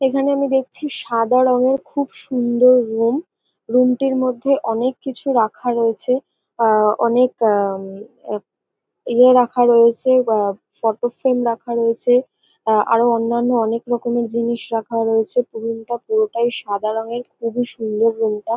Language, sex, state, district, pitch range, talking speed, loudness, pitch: Bengali, female, West Bengal, North 24 Parganas, 225-255 Hz, 135 wpm, -18 LUFS, 240 Hz